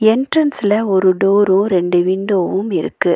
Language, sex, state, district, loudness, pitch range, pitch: Tamil, female, Tamil Nadu, Nilgiris, -15 LUFS, 185-210 Hz, 195 Hz